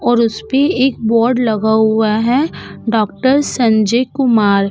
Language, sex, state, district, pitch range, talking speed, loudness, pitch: Hindi, female, Uttar Pradesh, Budaun, 220-260 Hz, 140 wpm, -14 LUFS, 230 Hz